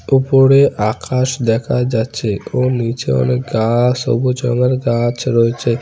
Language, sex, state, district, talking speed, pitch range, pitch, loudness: Bengali, male, West Bengal, Cooch Behar, 125 wpm, 115-130 Hz, 120 Hz, -15 LUFS